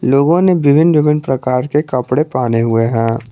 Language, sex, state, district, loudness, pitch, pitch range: Hindi, male, Jharkhand, Garhwa, -13 LUFS, 130 Hz, 120-150 Hz